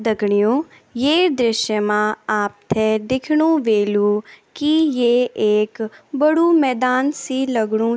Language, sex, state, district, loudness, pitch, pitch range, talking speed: Garhwali, female, Uttarakhand, Tehri Garhwal, -18 LUFS, 235 Hz, 215-280 Hz, 115 wpm